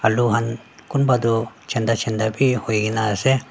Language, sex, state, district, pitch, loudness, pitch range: Nagamese, female, Nagaland, Dimapur, 115 Hz, -20 LUFS, 110-125 Hz